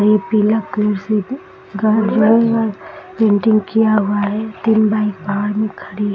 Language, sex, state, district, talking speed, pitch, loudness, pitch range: Hindi, male, Bihar, East Champaran, 115 wpm, 215 Hz, -16 LUFS, 205-220 Hz